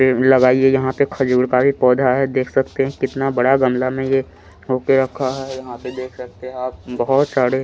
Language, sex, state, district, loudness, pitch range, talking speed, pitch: Hindi, male, Chandigarh, Chandigarh, -17 LUFS, 125-135 Hz, 210 wpm, 130 Hz